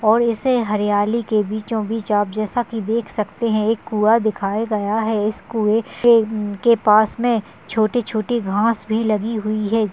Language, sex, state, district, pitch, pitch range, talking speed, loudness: Hindi, female, Maharashtra, Dhule, 220 Hz, 210-230 Hz, 170 wpm, -19 LUFS